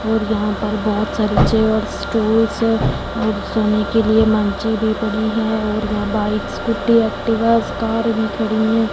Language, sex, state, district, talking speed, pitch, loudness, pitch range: Hindi, female, Punjab, Fazilka, 160 wpm, 220 Hz, -18 LUFS, 210-225 Hz